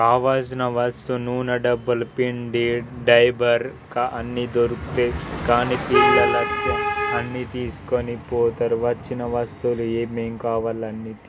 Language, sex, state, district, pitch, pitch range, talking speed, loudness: Telugu, male, Telangana, Karimnagar, 120 Hz, 120-125 Hz, 100 wpm, -22 LUFS